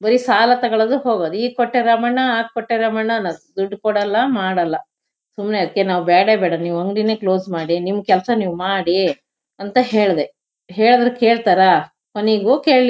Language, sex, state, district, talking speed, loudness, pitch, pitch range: Kannada, female, Karnataka, Shimoga, 160 wpm, -17 LUFS, 220 Hz, 190-240 Hz